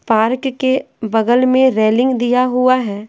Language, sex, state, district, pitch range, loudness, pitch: Hindi, female, Bihar, Patna, 225-255 Hz, -15 LUFS, 250 Hz